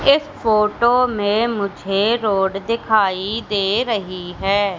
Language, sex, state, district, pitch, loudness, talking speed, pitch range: Hindi, female, Madhya Pradesh, Katni, 210 Hz, -18 LUFS, 115 wpm, 195-230 Hz